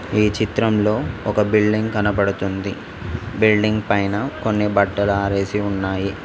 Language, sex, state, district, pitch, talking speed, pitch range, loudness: Telugu, male, Telangana, Mahabubabad, 105 Hz, 105 wpm, 100-110 Hz, -19 LUFS